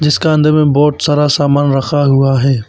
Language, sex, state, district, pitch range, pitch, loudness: Hindi, male, Arunachal Pradesh, Papum Pare, 135-150 Hz, 145 Hz, -11 LUFS